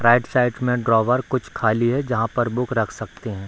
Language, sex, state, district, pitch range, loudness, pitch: Hindi, male, Bihar, Darbhanga, 110-125 Hz, -21 LUFS, 120 Hz